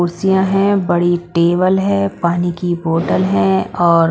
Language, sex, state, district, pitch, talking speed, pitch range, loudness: Hindi, female, Punjab, Pathankot, 175 Hz, 145 wpm, 165-180 Hz, -15 LUFS